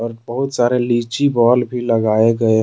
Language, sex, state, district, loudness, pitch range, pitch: Hindi, male, Jharkhand, Deoghar, -16 LUFS, 115-125 Hz, 120 Hz